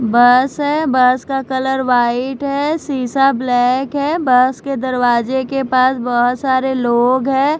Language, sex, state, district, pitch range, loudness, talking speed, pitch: Hindi, female, Bihar, Patna, 250-270 Hz, -15 LUFS, 150 wpm, 260 Hz